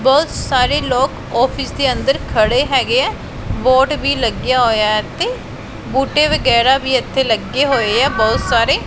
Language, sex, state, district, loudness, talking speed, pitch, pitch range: Punjabi, female, Punjab, Pathankot, -15 LUFS, 160 wpm, 265 Hz, 255-280 Hz